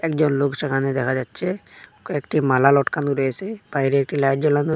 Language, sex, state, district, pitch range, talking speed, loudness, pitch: Bengali, male, Assam, Hailakandi, 135-155 Hz, 165 wpm, -21 LUFS, 140 Hz